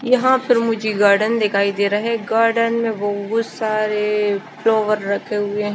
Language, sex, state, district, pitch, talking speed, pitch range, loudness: Hindi, female, Chandigarh, Chandigarh, 215 Hz, 155 wpm, 205-230 Hz, -18 LUFS